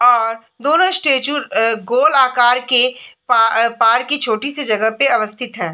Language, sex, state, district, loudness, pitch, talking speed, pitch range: Hindi, female, Chhattisgarh, Bilaspur, -15 LUFS, 245 Hz, 180 wpm, 225-265 Hz